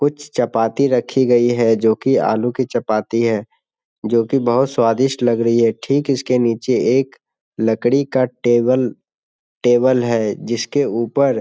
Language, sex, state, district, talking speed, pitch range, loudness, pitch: Hindi, male, Bihar, Jamui, 160 wpm, 115-130 Hz, -17 LUFS, 120 Hz